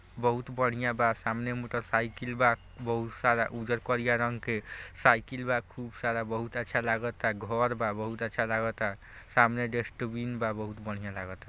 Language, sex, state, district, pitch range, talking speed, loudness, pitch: Bhojpuri, male, Bihar, East Champaran, 110-120 Hz, 160 wpm, -30 LUFS, 115 Hz